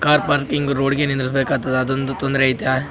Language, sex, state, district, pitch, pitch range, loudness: Kannada, male, Karnataka, Raichur, 135 Hz, 130-140 Hz, -19 LUFS